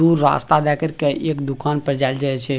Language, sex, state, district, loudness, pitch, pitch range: Maithili, male, Bihar, Purnia, -19 LUFS, 145 Hz, 140-155 Hz